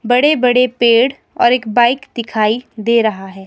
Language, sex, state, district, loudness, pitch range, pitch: Hindi, female, Himachal Pradesh, Shimla, -14 LUFS, 220-250 Hz, 235 Hz